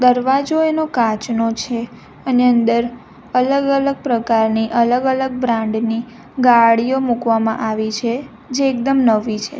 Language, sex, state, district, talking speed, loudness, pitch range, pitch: Gujarati, female, Gujarat, Valsad, 120 wpm, -17 LUFS, 225-265 Hz, 240 Hz